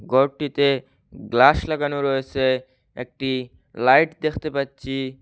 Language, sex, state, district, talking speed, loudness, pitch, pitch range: Bengali, male, Assam, Hailakandi, 90 wpm, -21 LUFS, 135 Hz, 130-140 Hz